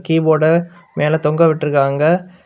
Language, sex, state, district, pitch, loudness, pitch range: Tamil, male, Tamil Nadu, Kanyakumari, 160 Hz, -15 LUFS, 150-170 Hz